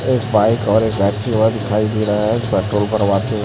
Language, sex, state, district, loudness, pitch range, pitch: Hindi, male, Chhattisgarh, Raipur, -16 LUFS, 105-110 Hz, 110 Hz